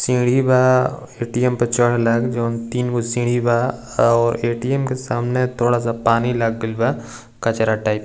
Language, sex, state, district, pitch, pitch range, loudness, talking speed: Bhojpuri, male, Bihar, East Champaran, 120 Hz, 115-125 Hz, -19 LUFS, 170 wpm